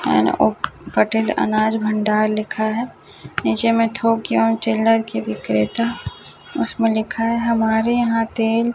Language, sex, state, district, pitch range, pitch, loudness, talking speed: Hindi, female, Chhattisgarh, Raipur, 215-230 Hz, 225 Hz, -19 LUFS, 130 wpm